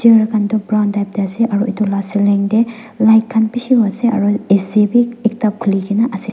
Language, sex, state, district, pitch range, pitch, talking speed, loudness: Nagamese, female, Nagaland, Dimapur, 205-225 Hz, 215 Hz, 180 wpm, -15 LUFS